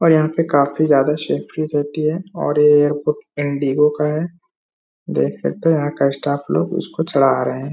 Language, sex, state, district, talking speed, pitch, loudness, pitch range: Hindi, male, Uttar Pradesh, Etah, 195 wpm, 150 Hz, -18 LUFS, 145-160 Hz